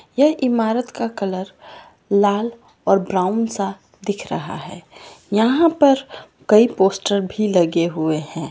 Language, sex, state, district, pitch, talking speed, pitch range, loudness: Marwari, female, Rajasthan, Churu, 205 Hz, 135 wpm, 190-245 Hz, -19 LUFS